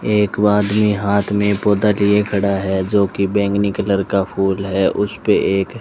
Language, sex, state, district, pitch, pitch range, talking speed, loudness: Hindi, male, Rajasthan, Bikaner, 100 Hz, 100-105 Hz, 185 wpm, -17 LUFS